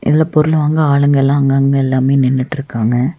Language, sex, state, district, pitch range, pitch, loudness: Tamil, female, Tamil Nadu, Nilgiris, 130-150 Hz, 140 Hz, -13 LUFS